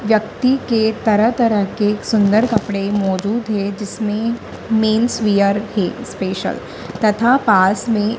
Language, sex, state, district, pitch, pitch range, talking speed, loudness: Hindi, female, Madhya Pradesh, Dhar, 215 Hz, 205-225 Hz, 125 wpm, -17 LUFS